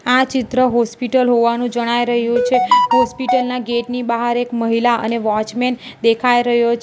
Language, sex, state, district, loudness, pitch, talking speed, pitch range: Gujarati, female, Gujarat, Valsad, -16 LUFS, 240 Hz, 175 wpm, 235-250 Hz